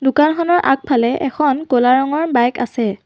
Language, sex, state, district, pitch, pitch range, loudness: Assamese, female, Assam, Sonitpur, 265 Hz, 245-300 Hz, -15 LUFS